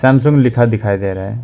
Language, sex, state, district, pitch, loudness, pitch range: Hindi, male, West Bengal, Alipurduar, 120 Hz, -13 LUFS, 100-130 Hz